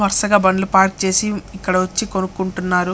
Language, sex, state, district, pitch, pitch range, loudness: Telugu, male, Andhra Pradesh, Chittoor, 190 Hz, 185-200 Hz, -17 LUFS